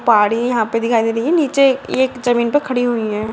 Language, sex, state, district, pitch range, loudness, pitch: Hindi, female, Bihar, Jamui, 230-260 Hz, -16 LUFS, 240 Hz